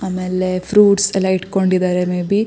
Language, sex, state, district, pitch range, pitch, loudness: Kannada, female, Karnataka, Shimoga, 185-200 Hz, 185 Hz, -16 LUFS